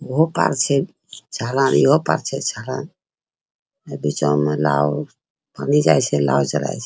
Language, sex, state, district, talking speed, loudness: Angika, female, Bihar, Bhagalpur, 150 wpm, -19 LUFS